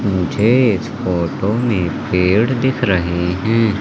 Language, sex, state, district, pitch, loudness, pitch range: Hindi, male, Madhya Pradesh, Katni, 105 Hz, -16 LUFS, 90-115 Hz